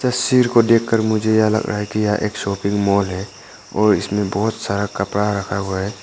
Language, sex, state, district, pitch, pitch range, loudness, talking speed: Hindi, male, Arunachal Pradesh, Papum Pare, 105 Hz, 100-110 Hz, -18 LUFS, 220 wpm